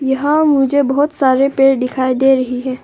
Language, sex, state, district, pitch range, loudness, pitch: Hindi, female, Arunachal Pradesh, Longding, 260-280 Hz, -14 LUFS, 270 Hz